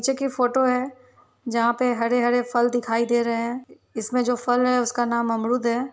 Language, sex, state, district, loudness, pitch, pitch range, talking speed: Hindi, female, Bihar, Muzaffarpur, -22 LUFS, 245 Hz, 235-250 Hz, 225 wpm